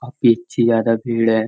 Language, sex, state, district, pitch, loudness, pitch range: Hindi, male, Uttar Pradesh, Jyotiba Phule Nagar, 115 Hz, -17 LUFS, 115-120 Hz